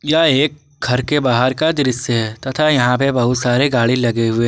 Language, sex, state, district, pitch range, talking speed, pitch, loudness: Hindi, male, Jharkhand, Ranchi, 120-145 Hz, 215 wpm, 125 Hz, -16 LUFS